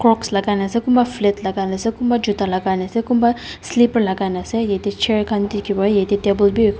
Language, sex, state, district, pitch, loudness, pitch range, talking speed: Nagamese, female, Nagaland, Dimapur, 205 Hz, -18 LUFS, 195-230 Hz, 240 wpm